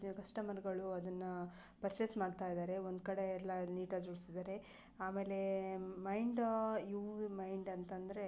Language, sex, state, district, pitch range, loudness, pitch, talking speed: Kannada, female, Karnataka, Bijapur, 185-200 Hz, -41 LUFS, 190 Hz, 130 wpm